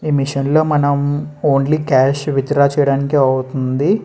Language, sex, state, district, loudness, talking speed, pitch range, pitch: Telugu, male, Andhra Pradesh, Srikakulam, -15 LUFS, 135 wpm, 135-150 Hz, 140 Hz